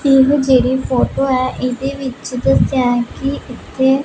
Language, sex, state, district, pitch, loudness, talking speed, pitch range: Punjabi, female, Punjab, Pathankot, 265 Hz, -16 LUFS, 150 wpm, 255-275 Hz